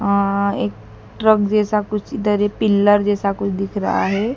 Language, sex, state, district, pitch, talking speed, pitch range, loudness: Hindi, female, Madhya Pradesh, Dhar, 205 Hz, 165 wpm, 200-210 Hz, -18 LUFS